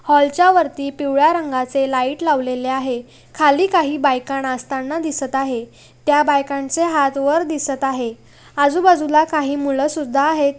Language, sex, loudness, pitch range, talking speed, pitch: Marathi, female, -18 LUFS, 270-305 Hz, 145 wpm, 285 Hz